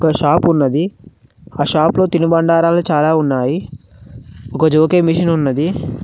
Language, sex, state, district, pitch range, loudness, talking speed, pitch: Telugu, male, Telangana, Mahabubabad, 145-165 Hz, -14 LUFS, 120 wpm, 160 Hz